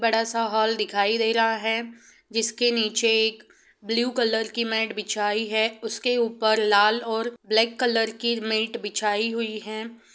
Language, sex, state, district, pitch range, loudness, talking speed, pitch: Hindi, female, Bihar, East Champaran, 220-230 Hz, -24 LUFS, 160 wpm, 225 Hz